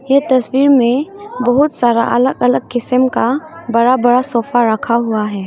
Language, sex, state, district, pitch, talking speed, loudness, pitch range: Hindi, female, Arunachal Pradesh, Longding, 245 Hz, 165 wpm, -14 LUFS, 235-270 Hz